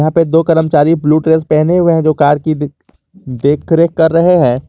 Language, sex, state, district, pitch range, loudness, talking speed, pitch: Hindi, male, Jharkhand, Garhwa, 150-165 Hz, -11 LUFS, 215 wpm, 160 Hz